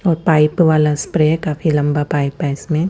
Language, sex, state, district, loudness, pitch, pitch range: Hindi, female, Punjab, Fazilka, -16 LUFS, 155 Hz, 150-165 Hz